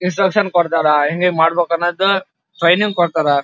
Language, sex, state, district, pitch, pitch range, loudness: Kannada, male, Karnataka, Dharwad, 175 Hz, 165-185 Hz, -15 LUFS